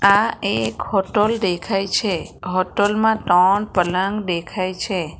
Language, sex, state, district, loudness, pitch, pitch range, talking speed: Gujarati, female, Gujarat, Valsad, -19 LUFS, 190 Hz, 180-205 Hz, 125 wpm